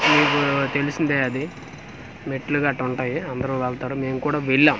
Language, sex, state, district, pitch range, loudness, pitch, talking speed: Telugu, male, Andhra Pradesh, Manyam, 130-145 Hz, -22 LUFS, 140 Hz, 135 wpm